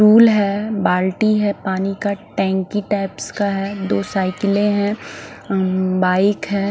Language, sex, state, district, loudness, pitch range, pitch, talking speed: Hindi, male, Punjab, Fazilka, -18 LUFS, 190-205 Hz, 200 Hz, 145 wpm